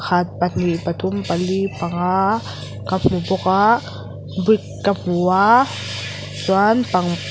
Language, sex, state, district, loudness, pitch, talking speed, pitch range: Mizo, female, Mizoram, Aizawl, -19 LUFS, 180 Hz, 125 wpm, 130-195 Hz